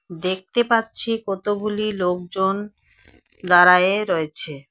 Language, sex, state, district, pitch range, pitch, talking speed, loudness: Bengali, female, West Bengal, Alipurduar, 180-210 Hz, 190 Hz, 75 wpm, -20 LUFS